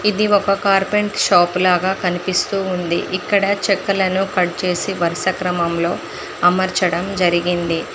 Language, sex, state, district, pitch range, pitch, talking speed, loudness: Telugu, female, Telangana, Mahabubabad, 175-195 Hz, 185 Hz, 115 wpm, -17 LUFS